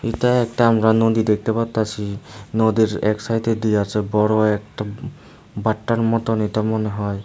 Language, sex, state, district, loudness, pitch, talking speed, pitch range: Bengali, male, Tripura, Unakoti, -20 LUFS, 110 Hz, 150 wpm, 105-115 Hz